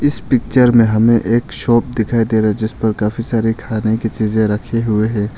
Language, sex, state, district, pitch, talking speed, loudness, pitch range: Hindi, male, Arunachal Pradesh, Longding, 110 Hz, 225 wpm, -15 LUFS, 110-115 Hz